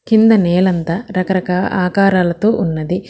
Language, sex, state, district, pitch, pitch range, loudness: Telugu, female, Telangana, Hyderabad, 185 Hz, 180-195 Hz, -14 LUFS